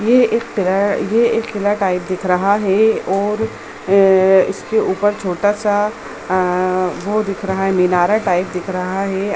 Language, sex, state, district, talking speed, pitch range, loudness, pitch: Hindi, female, Bihar, Supaul, 155 wpm, 185-210 Hz, -16 LUFS, 195 Hz